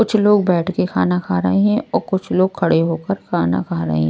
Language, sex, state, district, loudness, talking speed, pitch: Hindi, female, Punjab, Kapurthala, -17 LUFS, 235 wpm, 170 Hz